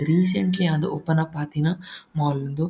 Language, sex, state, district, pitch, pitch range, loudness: Tulu, male, Karnataka, Dakshina Kannada, 160 Hz, 150-175 Hz, -24 LUFS